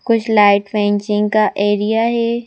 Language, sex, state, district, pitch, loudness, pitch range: Hindi, female, Madhya Pradesh, Bhopal, 210 Hz, -15 LUFS, 205-230 Hz